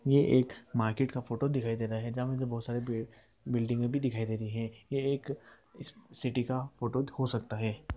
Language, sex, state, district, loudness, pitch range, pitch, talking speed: Hindi, male, Bihar, East Champaran, -33 LUFS, 115-130 Hz, 120 Hz, 190 wpm